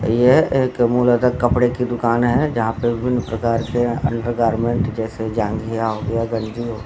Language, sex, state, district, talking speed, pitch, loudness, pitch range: Hindi, male, Bihar, Samastipur, 165 wpm, 120 Hz, -19 LUFS, 115-120 Hz